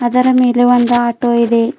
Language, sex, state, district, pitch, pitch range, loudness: Kannada, female, Karnataka, Bidar, 240 Hz, 235-250 Hz, -12 LUFS